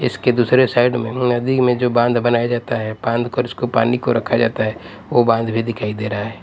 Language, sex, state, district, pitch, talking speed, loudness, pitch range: Hindi, male, Punjab, Pathankot, 120 Hz, 245 wpm, -18 LUFS, 115-125 Hz